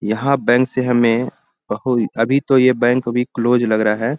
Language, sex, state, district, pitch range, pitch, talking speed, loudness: Hindi, male, Bihar, Bhagalpur, 115-130 Hz, 120 Hz, 185 wpm, -16 LUFS